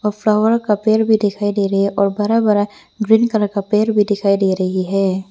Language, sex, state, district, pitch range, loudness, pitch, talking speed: Hindi, female, Arunachal Pradesh, Lower Dibang Valley, 200-215 Hz, -16 LUFS, 205 Hz, 225 wpm